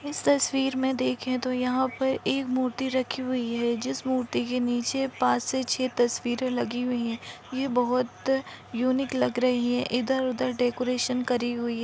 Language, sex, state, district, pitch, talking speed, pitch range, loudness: Hindi, female, Maharashtra, Nagpur, 255 Hz, 170 wpm, 245-260 Hz, -27 LUFS